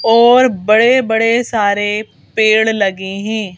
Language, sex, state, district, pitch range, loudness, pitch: Hindi, female, Madhya Pradesh, Bhopal, 205-230 Hz, -13 LUFS, 220 Hz